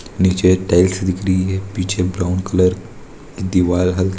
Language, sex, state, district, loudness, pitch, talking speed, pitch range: Hindi, male, Bihar, Madhepura, -17 LUFS, 95 Hz, 155 wpm, 90-95 Hz